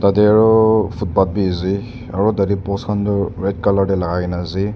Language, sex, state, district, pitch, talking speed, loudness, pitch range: Nagamese, male, Nagaland, Dimapur, 100 Hz, 175 wpm, -17 LUFS, 95-105 Hz